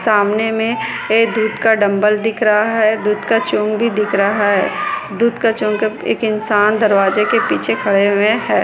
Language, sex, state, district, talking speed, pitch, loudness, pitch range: Hindi, female, Bihar, Kishanganj, 195 wpm, 215 Hz, -15 LUFS, 205-225 Hz